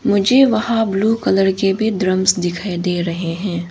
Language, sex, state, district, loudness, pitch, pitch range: Hindi, female, Arunachal Pradesh, Longding, -16 LUFS, 195 Hz, 180-220 Hz